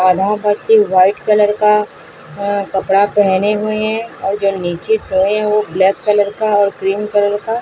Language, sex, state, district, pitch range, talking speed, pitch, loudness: Hindi, female, Odisha, Sambalpur, 195-210 Hz, 180 wpm, 205 Hz, -14 LUFS